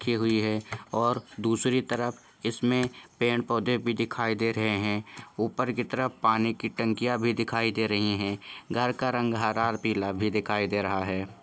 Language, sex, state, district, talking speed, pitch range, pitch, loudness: Hindi, male, Jharkhand, Sahebganj, 190 wpm, 110-120 Hz, 115 Hz, -28 LUFS